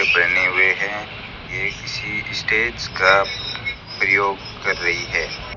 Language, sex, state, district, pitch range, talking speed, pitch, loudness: Hindi, male, Rajasthan, Bikaner, 100-120 Hz, 120 wpm, 105 Hz, -19 LUFS